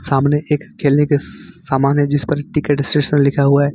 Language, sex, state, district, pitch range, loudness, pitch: Hindi, male, Jharkhand, Ranchi, 140-150 Hz, -16 LUFS, 145 Hz